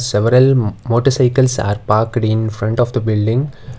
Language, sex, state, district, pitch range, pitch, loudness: English, male, Karnataka, Bangalore, 110-125 Hz, 120 Hz, -15 LUFS